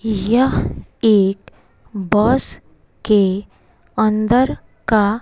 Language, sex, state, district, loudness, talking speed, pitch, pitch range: Hindi, female, Bihar, West Champaran, -17 LUFS, 70 wpm, 215 Hz, 205-230 Hz